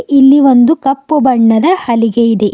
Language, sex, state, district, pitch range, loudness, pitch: Kannada, female, Karnataka, Bidar, 230-275 Hz, -9 LUFS, 265 Hz